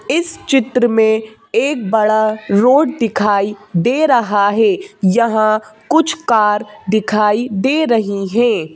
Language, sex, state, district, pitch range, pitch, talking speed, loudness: Hindi, female, Madhya Pradesh, Bhopal, 210-250 Hz, 220 Hz, 115 wpm, -14 LUFS